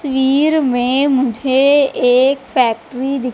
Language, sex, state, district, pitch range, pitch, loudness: Hindi, female, Madhya Pradesh, Katni, 250-275 Hz, 265 Hz, -14 LUFS